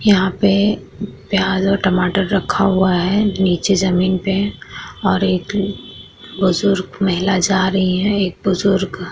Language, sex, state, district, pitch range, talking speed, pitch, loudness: Hindi, female, Bihar, Vaishali, 185-200 Hz, 145 wpm, 190 Hz, -17 LUFS